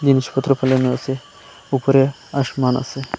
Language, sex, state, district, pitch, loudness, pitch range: Bengali, male, Assam, Hailakandi, 135 Hz, -19 LUFS, 130-135 Hz